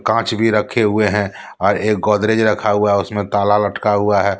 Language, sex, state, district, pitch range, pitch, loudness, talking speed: Hindi, male, Jharkhand, Deoghar, 100-110 Hz, 105 Hz, -16 LUFS, 220 wpm